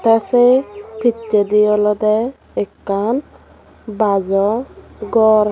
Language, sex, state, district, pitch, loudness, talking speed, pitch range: Chakma, female, Tripura, Dhalai, 215 Hz, -16 LUFS, 75 wpm, 210-230 Hz